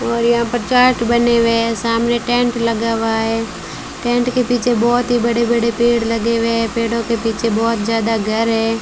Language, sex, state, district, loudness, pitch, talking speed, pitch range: Hindi, female, Rajasthan, Bikaner, -16 LUFS, 230 Hz, 205 wpm, 230-240 Hz